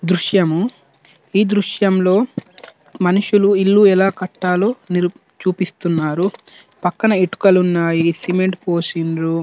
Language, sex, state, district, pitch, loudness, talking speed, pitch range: Telugu, male, Telangana, Nalgonda, 185 Hz, -17 LUFS, 90 wpm, 175-200 Hz